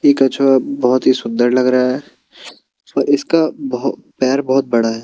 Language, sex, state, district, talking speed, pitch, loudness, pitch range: Hindi, male, Bihar, Kaimur, 180 wpm, 135 Hz, -15 LUFS, 125-140 Hz